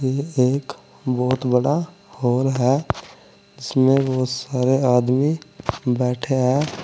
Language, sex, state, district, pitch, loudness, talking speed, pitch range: Hindi, male, Uttar Pradesh, Saharanpur, 130 Hz, -21 LUFS, 105 wpm, 125-140 Hz